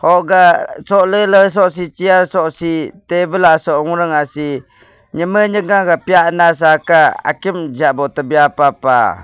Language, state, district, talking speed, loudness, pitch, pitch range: Nyishi, Arunachal Pradesh, Papum Pare, 115 wpm, -13 LUFS, 170 Hz, 150-185 Hz